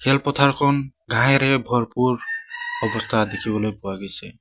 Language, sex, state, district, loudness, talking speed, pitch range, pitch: Assamese, male, Assam, Sonitpur, -21 LUFS, 95 wpm, 110-140 Hz, 135 Hz